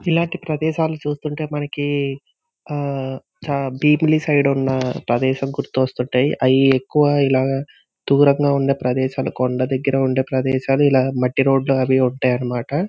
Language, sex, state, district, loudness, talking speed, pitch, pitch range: Telugu, male, Andhra Pradesh, Visakhapatnam, -19 LUFS, 115 wpm, 135 Hz, 130-145 Hz